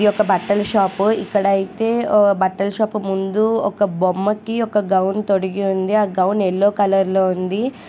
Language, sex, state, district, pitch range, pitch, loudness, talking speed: Telugu, female, Andhra Pradesh, Krishna, 190-210 Hz, 200 Hz, -18 LUFS, 165 wpm